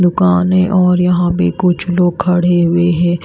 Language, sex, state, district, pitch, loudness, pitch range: Hindi, female, Himachal Pradesh, Shimla, 180 Hz, -13 LUFS, 175-180 Hz